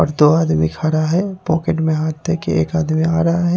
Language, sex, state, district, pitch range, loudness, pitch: Hindi, male, Haryana, Charkhi Dadri, 150-165 Hz, -17 LUFS, 160 Hz